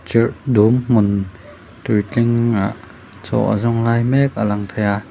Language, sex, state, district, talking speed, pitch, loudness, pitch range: Mizo, male, Mizoram, Aizawl, 165 wpm, 110 Hz, -17 LUFS, 100-115 Hz